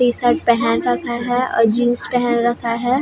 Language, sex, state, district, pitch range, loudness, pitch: Chhattisgarhi, female, Chhattisgarh, Raigarh, 230-245 Hz, -17 LUFS, 240 Hz